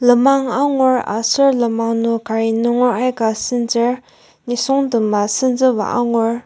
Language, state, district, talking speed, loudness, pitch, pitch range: Ao, Nagaland, Kohima, 120 wpm, -16 LUFS, 240 Hz, 230-255 Hz